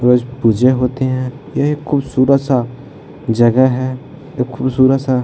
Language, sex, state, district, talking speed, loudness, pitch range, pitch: Hindi, male, Bihar, Jahanabad, 135 wpm, -15 LUFS, 125-140 Hz, 130 Hz